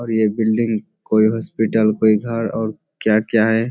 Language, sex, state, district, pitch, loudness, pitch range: Hindi, male, Bihar, Kishanganj, 110 Hz, -18 LUFS, 110-115 Hz